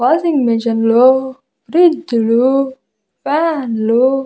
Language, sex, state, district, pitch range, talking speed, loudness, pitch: Telugu, female, Andhra Pradesh, Visakhapatnam, 235-290 Hz, 70 wpm, -14 LUFS, 265 Hz